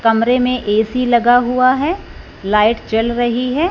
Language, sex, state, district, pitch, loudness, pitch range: Hindi, female, Punjab, Fazilka, 240 Hz, -15 LUFS, 225-255 Hz